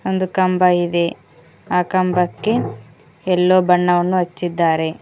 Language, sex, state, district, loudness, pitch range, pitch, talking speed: Kannada, female, Karnataka, Koppal, -17 LUFS, 165-185 Hz, 175 Hz, 95 wpm